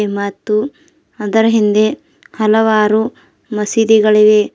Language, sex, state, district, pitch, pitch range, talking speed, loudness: Kannada, female, Karnataka, Bidar, 215 Hz, 210-225 Hz, 65 wpm, -13 LUFS